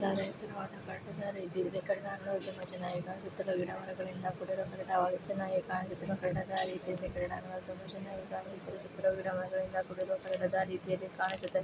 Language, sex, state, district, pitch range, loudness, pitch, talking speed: Kannada, female, Karnataka, Shimoga, 185-190 Hz, -37 LUFS, 185 Hz, 120 wpm